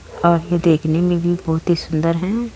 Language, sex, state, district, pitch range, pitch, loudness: Hindi, female, Uttar Pradesh, Muzaffarnagar, 165-175 Hz, 170 Hz, -18 LUFS